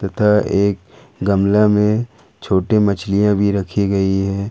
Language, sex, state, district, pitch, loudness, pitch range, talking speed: Hindi, male, Jharkhand, Ranchi, 100 Hz, -16 LUFS, 100-105 Hz, 135 wpm